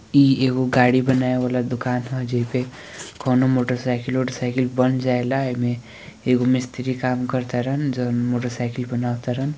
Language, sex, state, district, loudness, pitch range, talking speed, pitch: Hindi, male, Bihar, Gopalganj, -21 LUFS, 125-130 Hz, 140 wpm, 125 Hz